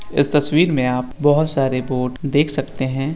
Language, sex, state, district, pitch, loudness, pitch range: Hindi, male, Uttar Pradesh, Etah, 140 Hz, -18 LUFS, 130-150 Hz